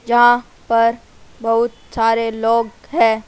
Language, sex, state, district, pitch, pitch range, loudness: Hindi, female, Rajasthan, Jaipur, 230 Hz, 225-235 Hz, -17 LUFS